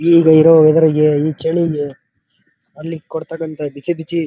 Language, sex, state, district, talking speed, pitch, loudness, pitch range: Kannada, male, Karnataka, Dharwad, 125 wpm, 160 Hz, -14 LUFS, 155-165 Hz